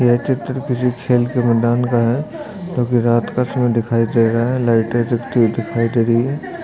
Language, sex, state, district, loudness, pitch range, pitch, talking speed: Hindi, male, Chhattisgarh, Jashpur, -17 LUFS, 115-125 Hz, 120 Hz, 190 wpm